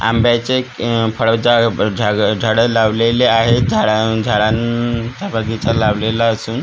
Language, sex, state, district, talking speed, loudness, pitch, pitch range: Marathi, male, Maharashtra, Gondia, 145 wpm, -15 LUFS, 115 Hz, 110-120 Hz